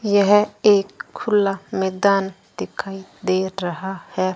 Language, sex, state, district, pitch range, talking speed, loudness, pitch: Hindi, female, Rajasthan, Bikaner, 190-205 Hz, 110 wpm, -20 LUFS, 195 Hz